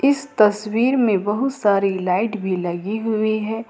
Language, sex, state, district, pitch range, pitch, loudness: Hindi, female, Jharkhand, Ranchi, 200-230 Hz, 215 Hz, -20 LUFS